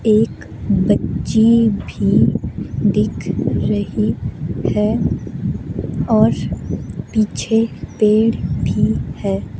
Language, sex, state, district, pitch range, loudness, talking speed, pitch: Hindi, female, Himachal Pradesh, Shimla, 210-225 Hz, -18 LUFS, 70 wpm, 220 Hz